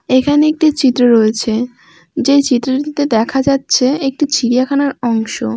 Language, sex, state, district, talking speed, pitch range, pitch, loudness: Bengali, female, West Bengal, Malda, 130 wpm, 240-285 Hz, 265 Hz, -13 LUFS